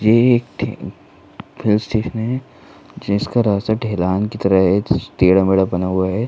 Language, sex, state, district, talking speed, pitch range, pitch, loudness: Hindi, male, Uttar Pradesh, Muzaffarnagar, 165 wpm, 95-110 Hz, 105 Hz, -17 LUFS